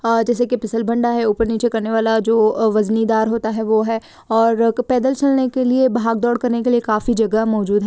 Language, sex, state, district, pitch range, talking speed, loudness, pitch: Hindi, female, Bihar, Sitamarhi, 220-240 Hz, 235 wpm, -17 LUFS, 230 Hz